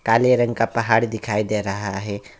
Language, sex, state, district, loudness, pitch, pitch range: Hindi, male, West Bengal, Alipurduar, -21 LUFS, 110 Hz, 105-115 Hz